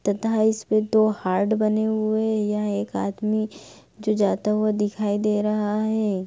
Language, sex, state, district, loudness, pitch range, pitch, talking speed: Hindi, female, Bihar, Begusarai, -23 LUFS, 205-215 Hz, 215 Hz, 170 wpm